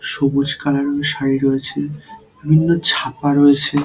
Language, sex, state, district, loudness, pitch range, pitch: Bengali, male, West Bengal, Dakshin Dinajpur, -16 LUFS, 140-150 Hz, 145 Hz